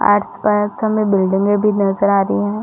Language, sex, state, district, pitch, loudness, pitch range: Hindi, female, Chhattisgarh, Rajnandgaon, 205 Hz, -16 LUFS, 200-210 Hz